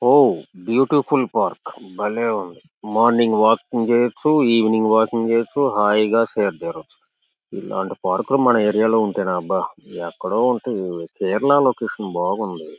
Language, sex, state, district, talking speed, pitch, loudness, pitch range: Telugu, male, Andhra Pradesh, Guntur, 130 wpm, 115 Hz, -19 LUFS, 110-125 Hz